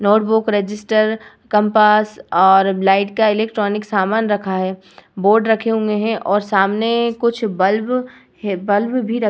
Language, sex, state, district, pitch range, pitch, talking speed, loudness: Hindi, female, Uttar Pradesh, Budaun, 200-225 Hz, 210 Hz, 150 wpm, -16 LUFS